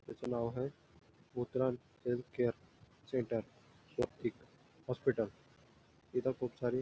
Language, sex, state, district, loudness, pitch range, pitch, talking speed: Marathi, male, Maharashtra, Nagpur, -39 LUFS, 120-130 Hz, 125 Hz, 90 wpm